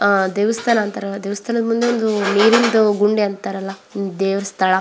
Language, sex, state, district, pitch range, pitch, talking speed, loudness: Kannada, female, Karnataka, Belgaum, 195-225 Hz, 205 Hz, 135 wpm, -18 LUFS